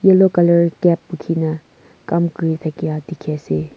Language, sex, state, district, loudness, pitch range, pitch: Nagamese, female, Nagaland, Kohima, -18 LUFS, 155-170 Hz, 165 Hz